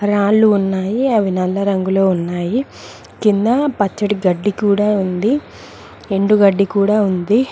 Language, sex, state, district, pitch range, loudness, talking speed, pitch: Telugu, female, Telangana, Mahabubabad, 195-215 Hz, -16 LUFS, 120 wpm, 205 Hz